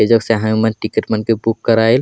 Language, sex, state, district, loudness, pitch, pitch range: Sadri, male, Chhattisgarh, Jashpur, -16 LUFS, 115 Hz, 110-115 Hz